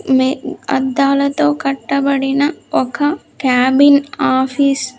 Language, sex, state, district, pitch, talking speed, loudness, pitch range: Telugu, female, Andhra Pradesh, Sri Satya Sai, 275 Hz, 85 wpm, -15 LUFS, 265-285 Hz